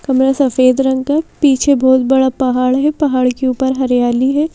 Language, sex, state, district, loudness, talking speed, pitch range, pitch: Hindi, female, Madhya Pradesh, Bhopal, -13 LUFS, 185 wpm, 255-275 Hz, 265 Hz